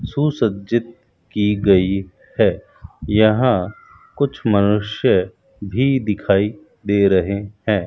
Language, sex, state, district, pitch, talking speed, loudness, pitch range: Hindi, male, Rajasthan, Bikaner, 105 Hz, 90 wpm, -18 LUFS, 100-120 Hz